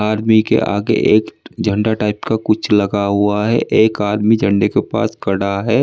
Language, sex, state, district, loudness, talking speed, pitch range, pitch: Hindi, male, Uttar Pradesh, Saharanpur, -15 LUFS, 185 wpm, 100-110 Hz, 105 Hz